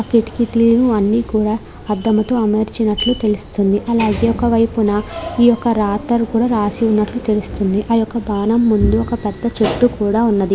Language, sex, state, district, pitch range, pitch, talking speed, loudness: Telugu, female, Andhra Pradesh, Krishna, 210-235 Hz, 225 Hz, 135 wpm, -16 LUFS